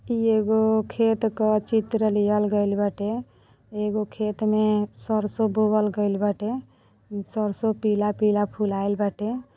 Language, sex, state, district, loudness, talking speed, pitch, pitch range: Bhojpuri, female, Uttar Pradesh, Deoria, -24 LUFS, 120 wpm, 215 Hz, 205-220 Hz